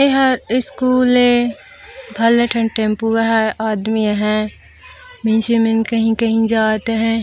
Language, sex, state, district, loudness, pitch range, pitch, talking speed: Chhattisgarhi, female, Chhattisgarh, Raigarh, -16 LUFS, 220-240 Hz, 225 Hz, 125 wpm